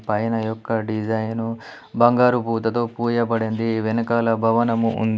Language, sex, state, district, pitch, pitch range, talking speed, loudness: Telugu, male, Telangana, Adilabad, 115 Hz, 110-115 Hz, 105 wpm, -21 LUFS